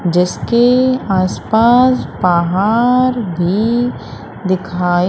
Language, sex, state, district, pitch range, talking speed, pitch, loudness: Hindi, female, Madhya Pradesh, Umaria, 180-245 Hz, 60 wpm, 200 Hz, -14 LUFS